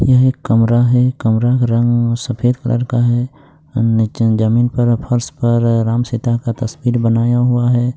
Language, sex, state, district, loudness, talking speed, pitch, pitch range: Hindi, male, Jharkhand, Sahebganj, -15 LUFS, 175 wpm, 120 Hz, 115-125 Hz